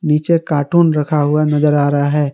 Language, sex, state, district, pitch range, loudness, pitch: Hindi, male, Jharkhand, Garhwa, 145-155 Hz, -14 LUFS, 150 Hz